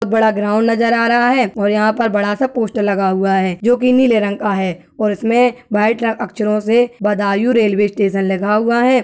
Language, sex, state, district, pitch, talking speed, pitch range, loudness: Hindi, female, Uttar Pradesh, Budaun, 215 Hz, 210 wpm, 205-235 Hz, -15 LUFS